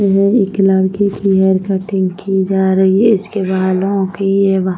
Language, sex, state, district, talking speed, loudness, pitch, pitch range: Hindi, female, Jharkhand, Sahebganj, 165 wpm, -14 LUFS, 195 Hz, 190-195 Hz